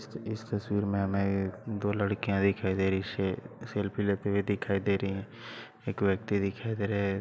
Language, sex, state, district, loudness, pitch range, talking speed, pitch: Hindi, male, Bihar, Bhagalpur, -31 LUFS, 100-105 Hz, 200 wpm, 100 Hz